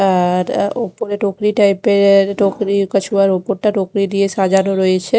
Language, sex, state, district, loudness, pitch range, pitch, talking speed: Bengali, female, Odisha, Khordha, -15 LUFS, 195-200 Hz, 195 Hz, 125 wpm